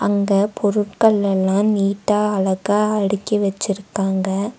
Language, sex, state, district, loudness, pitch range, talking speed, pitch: Tamil, female, Tamil Nadu, Nilgiris, -19 LUFS, 195-210 Hz, 90 wpm, 200 Hz